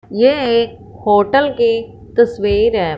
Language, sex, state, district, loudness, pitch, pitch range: Hindi, female, Punjab, Fazilka, -15 LUFS, 235 Hz, 230-280 Hz